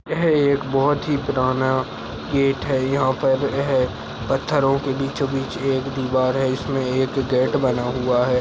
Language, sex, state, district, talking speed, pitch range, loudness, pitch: Hindi, male, Maharashtra, Nagpur, 165 wpm, 130-140 Hz, -21 LUFS, 135 Hz